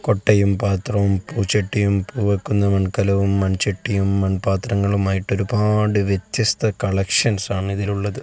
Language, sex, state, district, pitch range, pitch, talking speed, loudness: Malayalam, male, Kerala, Kozhikode, 95-105 Hz, 100 Hz, 85 wpm, -20 LUFS